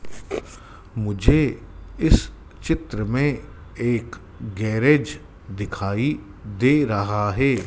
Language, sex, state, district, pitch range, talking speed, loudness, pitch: Hindi, male, Madhya Pradesh, Dhar, 100-130 Hz, 80 wpm, -22 LUFS, 110 Hz